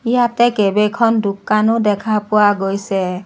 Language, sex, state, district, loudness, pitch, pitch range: Assamese, female, Assam, Sonitpur, -15 LUFS, 210 Hz, 200-225 Hz